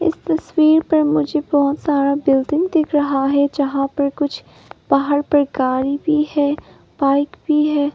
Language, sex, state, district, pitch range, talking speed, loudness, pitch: Hindi, female, Arunachal Pradesh, Papum Pare, 280-305 Hz, 160 wpm, -17 LUFS, 290 Hz